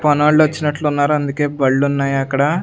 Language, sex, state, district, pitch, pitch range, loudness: Telugu, male, Andhra Pradesh, Sri Satya Sai, 145 Hz, 140-150 Hz, -16 LUFS